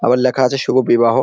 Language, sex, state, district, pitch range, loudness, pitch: Bengali, male, West Bengal, Jalpaiguri, 120-130 Hz, -15 LUFS, 125 Hz